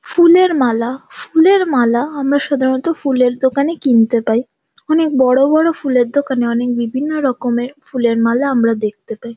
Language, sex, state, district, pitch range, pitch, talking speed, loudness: Bengali, female, West Bengal, Jhargram, 240-295 Hz, 260 Hz, 145 wpm, -15 LUFS